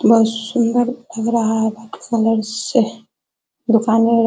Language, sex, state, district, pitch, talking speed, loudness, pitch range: Hindi, female, Uttar Pradesh, Hamirpur, 225 Hz, 100 wpm, -18 LUFS, 225-235 Hz